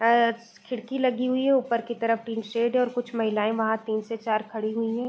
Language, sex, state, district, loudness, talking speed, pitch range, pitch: Hindi, female, Bihar, Gopalganj, -26 LUFS, 250 wpm, 225-245 Hz, 230 Hz